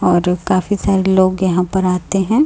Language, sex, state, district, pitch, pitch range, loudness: Hindi, female, Chhattisgarh, Raipur, 185 Hz, 180-195 Hz, -15 LUFS